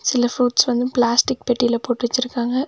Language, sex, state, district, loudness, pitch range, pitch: Tamil, female, Tamil Nadu, Nilgiris, -19 LUFS, 240-250 Hz, 245 Hz